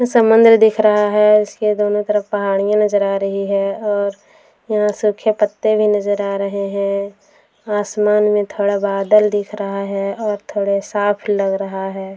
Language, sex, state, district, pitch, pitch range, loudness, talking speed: Hindi, female, Bihar, Sitamarhi, 205 Hz, 200-210 Hz, -16 LUFS, 170 wpm